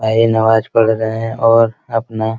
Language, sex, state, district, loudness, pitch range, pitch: Hindi, male, Bihar, Araria, -14 LUFS, 110-115 Hz, 115 Hz